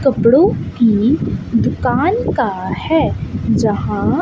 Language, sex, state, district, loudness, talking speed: Hindi, female, Chandigarh, Chandigarh, -15 LUFS, 85 wpm